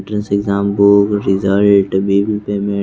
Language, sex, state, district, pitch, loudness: Hindi, male, Bihar, West Champaran, 100 Hz, -14 LUFS